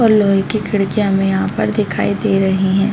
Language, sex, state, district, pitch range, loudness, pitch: Hindi, female, Chhattisgarh, Bilaspur, 195-210 Hz, -15 LUFS, 195 Hz